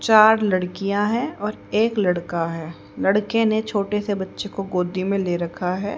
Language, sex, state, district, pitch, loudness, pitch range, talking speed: Hindi, female, Haryana, Rohtak, 200 Hz, -22 LUFS, 180-215 Hz, 180 wpm